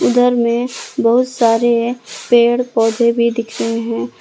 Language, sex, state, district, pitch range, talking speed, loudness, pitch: Hindi, female, Jharkhand, Palamu, 225-245 Hz, 140 wpm, -15 LUFS, 235 Hz